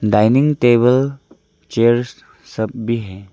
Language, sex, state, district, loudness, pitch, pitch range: Hindi, male, Arunachal Pradesh, Lower Dibang Valley, -16 LUFS, 120 Hz, 110-125 Hz